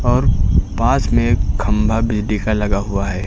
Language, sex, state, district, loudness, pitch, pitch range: Hindi, male, Uttar Pradesh, Lucknow, -17 LUFS, 105 Hz, 100-115 Hz